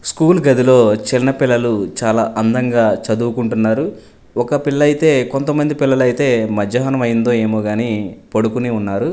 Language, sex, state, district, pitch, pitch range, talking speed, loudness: Telugu, male, Andhra Pradesh, Manyam, 120 Hz, 110-135 Hz, 110 wpm, -15 LUFS